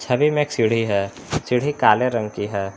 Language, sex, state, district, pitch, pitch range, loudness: Hindi, male, Jharkhand, Palamu, 115 Hz, 105-125 Hz, -20 LUFS